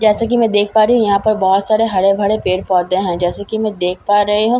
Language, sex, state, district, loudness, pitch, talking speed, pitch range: Hindi, female, Bihar, Katihar, -14 LUFS, 205 Hz, 315 wpm, 190-215 Hz